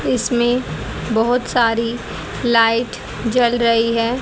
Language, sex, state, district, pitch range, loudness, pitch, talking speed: Hindi, female, Haryana, Jhajjar, 230-245 Hz, -18 LUFS, 235 Hz, 100 wpm